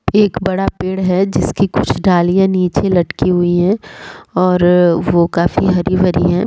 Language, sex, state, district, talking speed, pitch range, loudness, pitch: Hindi, female, Bihar, Sitamarhi, 160 wpm, 175-190 Hz, -14 LUFS, 180 Hz